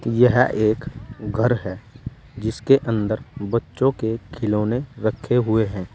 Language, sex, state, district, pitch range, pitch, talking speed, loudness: Hindi, male, Uttar Pradesh, Saharanpur, 110-125 Hz, 115 Hz, 120 wpm, -21 LUFS